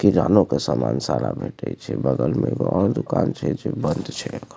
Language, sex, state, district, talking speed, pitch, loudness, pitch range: Maithili, male, Bihar, Supaul, 225 wpm, 75 Hz, -22 LUFS, 65-95 Hz